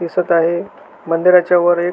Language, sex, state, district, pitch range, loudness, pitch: Marathi, male, Maharashtra, Aurangabad, 170-180 Hz, -14 LUFS, 175 Hz